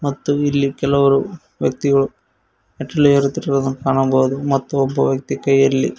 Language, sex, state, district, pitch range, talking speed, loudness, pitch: Kannada, male, Karnataka, Koppal, 135-140 Hz, 110 wpm, -17 LUFS, 135 Hz